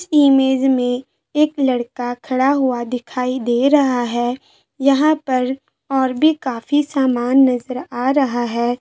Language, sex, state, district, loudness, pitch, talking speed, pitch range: Hindi, female, Bihar, Lakhisarai, -17 LUFS, 260 Hz, 155 wpm, 245-275 Hz